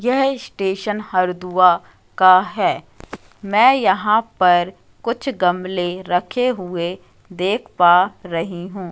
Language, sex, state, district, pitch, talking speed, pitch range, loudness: Hindi, female, Madhya Pradesh, Katni, 185 Hz, 110 wpm, 180-215 Hz, -18 LUFS